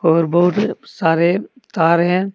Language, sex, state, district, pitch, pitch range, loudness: Hindi, male, Jharkhand, Deoghar, 175 Hz, 165-195 Hz, -16 LUFS